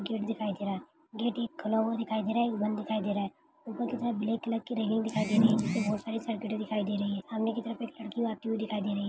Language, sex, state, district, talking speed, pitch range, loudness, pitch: Hindi, female, Bihar, Gopalganj, 325 wpm, 210-230 Hz, -32 LUFS, 220 Hz